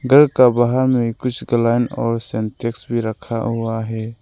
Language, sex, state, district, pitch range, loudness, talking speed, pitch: Hindi, male, Arunachal Pradesh, Lower Dibang Valley, 115-125 Hz, -18 LUFS, 170 wpm, 115 Hz